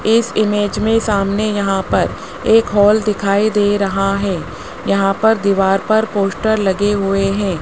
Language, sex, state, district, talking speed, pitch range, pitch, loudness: Hindi, male, Rajasthan, Jaipur, 155 wpm, 195-215 Hz, 205 Hz, -15 LUFS